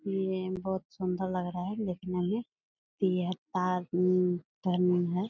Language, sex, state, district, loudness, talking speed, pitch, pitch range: Hindi, female, Bihar, Purnia, -31 LUFS, 125 wpm, 185 Hz, 180-190 Hz